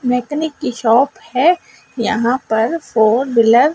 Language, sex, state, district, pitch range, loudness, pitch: Hindi, female, Madhya Pradesh, Dhar, 225-265 Hz, -16 LUFS, 245 Hz